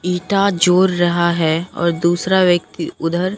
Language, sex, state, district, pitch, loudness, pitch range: Hindi, male, Bihar, Katihar, 175 Hz, -16 LUFS, 170-185 Hz